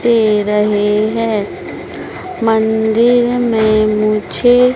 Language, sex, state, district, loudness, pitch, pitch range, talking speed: Hindi, female, Madhya Pradesh, Dhar, -13 LUFS, 220 Hz, 210-235 Hz, 75 wpm